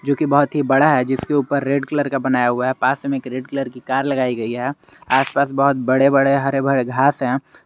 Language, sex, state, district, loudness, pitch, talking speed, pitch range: Hindi, male, Jharkhand, Garhwa, -18 LUFS, 135 Hz, 235 wpm, 130-140 Hz